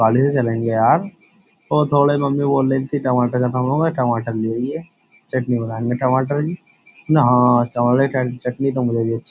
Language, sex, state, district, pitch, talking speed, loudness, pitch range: Hindi, male, Uttar Pradesh, Jyotiba Phule Nagar, 130 Hz, 200 wpm, -18 LUFS, 120-145 Hz